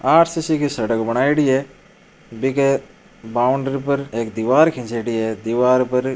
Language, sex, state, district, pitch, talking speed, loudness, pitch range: Marwari, male, Rajasthan, Churu, 130 Hz, 145 wpm, -19 LUFS, 115-145 Hz